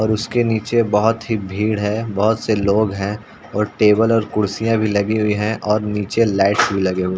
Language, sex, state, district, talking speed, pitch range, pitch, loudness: Hindi, male, Uttar Pradesh, Ghazipur, 215 wpm, 100-110 Hz, 105 Hz, -18 LUFS